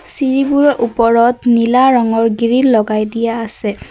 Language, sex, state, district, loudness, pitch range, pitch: Assamese, female, Assam, Kamrup Metropolitan, -13 LUFS, 225-255 Hz, 235 Hz